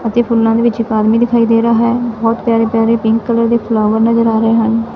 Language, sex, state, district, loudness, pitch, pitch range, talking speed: Punjabi, female, Punjab, Fazilka, -12 LUFS, 230 Hz, 225-235 Hz, 255 wpm